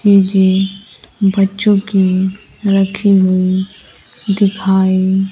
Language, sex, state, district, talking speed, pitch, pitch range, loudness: Hindi, female, Bihar, Kaimur, 55 wpm, 195 Hz, 190-200 Hz, -13 LUFS